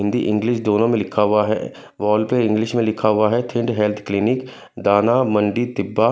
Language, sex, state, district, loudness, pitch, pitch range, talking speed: Hindi, male, Punjab, Kapurthala, -19 LUFS, 110 Hz, 105-120 Hz, 145 wpm